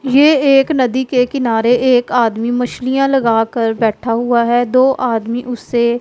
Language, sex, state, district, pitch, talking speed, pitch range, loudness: Hindi, female, Punjab, Pathankot, 245 Hz, 150 wpm, 235-260 Hz, -14 LUFS